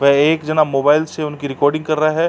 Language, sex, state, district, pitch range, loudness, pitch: Hindi, male, Uttar Pradesh, Jalaun, 145-155 Hz, -16 LUFS, 155 Hz